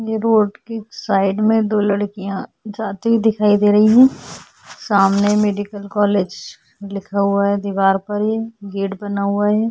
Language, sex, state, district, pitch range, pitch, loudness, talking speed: Hindi, female, Goa, North and South Goa, 200-215 Hz, 205 Hz, -17 LUFS, 155 wpm